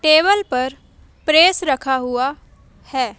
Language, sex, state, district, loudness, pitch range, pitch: Hindi, female, Madhya Pradesh, Umaria, -17 LUFS, 255-315 Hz, 275 Hz